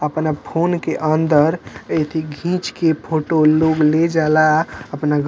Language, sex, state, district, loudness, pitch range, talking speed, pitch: Bhojpuri, male, Bihar, Muzaffarpur, -17 LUFS, 150-160 Hz, 170 wpm, 155 Hz